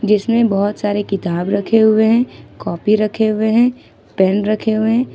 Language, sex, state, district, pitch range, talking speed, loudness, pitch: Hindi, female, Jharkhand, Ranchi, 200-220 Hz, 175 wpm, -16 LUFS, 215 Hz